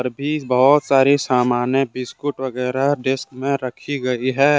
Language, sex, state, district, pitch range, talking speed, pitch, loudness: Hindi, male, Jharkhand, Deoghar, 125-140 Hz, 145 wpm, 135 Hz, -19 LUFS